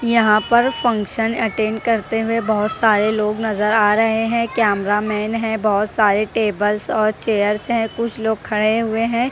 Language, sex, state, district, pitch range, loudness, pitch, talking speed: Hindi, female, Punjab, Kapurthala, 210-230 Hz, -18 LUFS, 220 Hz, 175 wpm